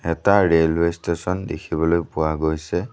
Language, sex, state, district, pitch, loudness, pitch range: Assamese, male, Assam, Sonitpur, 85 Hz, -21 LUFS, 80-90 Hz